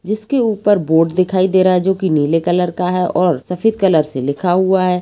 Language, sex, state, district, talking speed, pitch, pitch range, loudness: Hindi, female, Bihar, Jamui, 225 wpm, 180 Hz, 170-190 Hz, -15 LUFS